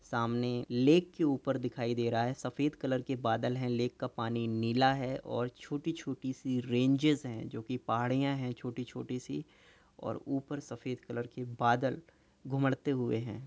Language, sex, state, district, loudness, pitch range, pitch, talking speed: Hindi, male, Uttar Pradesh, Jyotiba Phule Nagar, -34 LUFS, 120-135 Hz, 125 Hz, 165 wpm